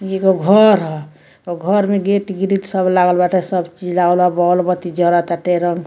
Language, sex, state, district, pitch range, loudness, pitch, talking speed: Bhojpuri, female, Bihar, Muzaffarpur, 175-190 Hz, -15 LUFS, 180 Hz, 205 wpm